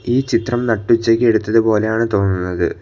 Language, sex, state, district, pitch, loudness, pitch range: Malayalam, male, Kerala, Kollam, 115 Hz, -16 LUFS, 105-115 Hz